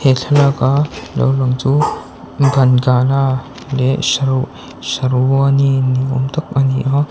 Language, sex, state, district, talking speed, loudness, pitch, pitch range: Mizo, male, Mizoram, Aizawl, 110 wpm, -15 LUFS, 135 Hz, 130-140 Hz